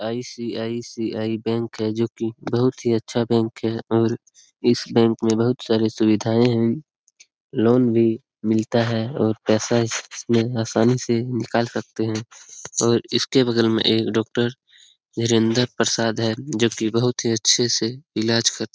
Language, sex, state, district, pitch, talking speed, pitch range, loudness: Hindi, male, Bihar, Lakhisarai, 115 Hz, 160 wpm, 110-120 Hz, -21 LUFS